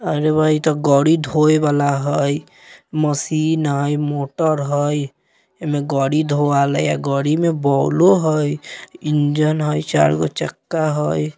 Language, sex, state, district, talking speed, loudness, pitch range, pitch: Bajjika, male, Bihar, Vaishali, 150 wpm, -18 LUFS, 140-155 Hz, 150 Hz